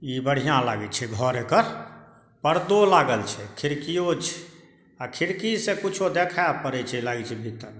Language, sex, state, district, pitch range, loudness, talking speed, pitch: Maithili, male, Bihar, Saharsa, 120-175 Hz, -24 LUFS, 160 wpm, 135 Hz